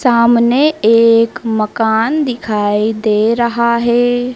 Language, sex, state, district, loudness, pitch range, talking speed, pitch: Hindi, female, Madhya Pradesh, Dhar, -13 LUFS, 220-245 Hz, 95 wpm, 235 Hz